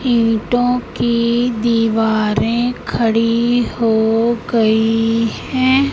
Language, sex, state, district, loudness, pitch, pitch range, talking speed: Hindi, female, Madhya Pradesh, Katni, -16 LUFS, 230 Hz, 225-245 Hz, 70 wpm